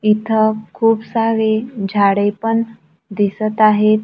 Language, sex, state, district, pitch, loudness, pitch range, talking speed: Marathi, female, Maharashtra, Gondia, 215 Hz, -16 LUFS, 205-225 Hz, 105 wpm